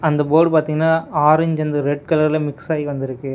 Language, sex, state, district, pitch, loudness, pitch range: Tamil, male, Tamil Nadu, Nilgiris, 155 Hz, -18 LUFS, 145-160 Hz